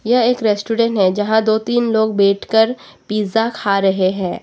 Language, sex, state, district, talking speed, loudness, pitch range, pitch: Hindi, female, Arunachal Pradesh, Papum Pare, 175 wpm, -16 LUFS, 200-230 Hz, 220 Hz